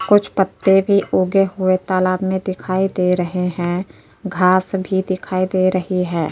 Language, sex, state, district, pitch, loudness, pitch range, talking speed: Hindi, female, Uttar Pradesh, Jyotiba Phule Nagar, 185 Hz, -18 LUFS, 185-195 Hz, 160 wpm